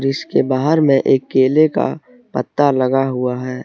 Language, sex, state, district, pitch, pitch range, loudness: Hindi, male, Jharkhand, Deoghar, 135 Hz, 130-150 Hz, -16 LUFS